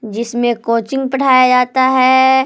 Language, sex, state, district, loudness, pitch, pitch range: Hindi, female, Jharkhand, Palamu, -13 LUFS, 255 Hz, 235-265 Hz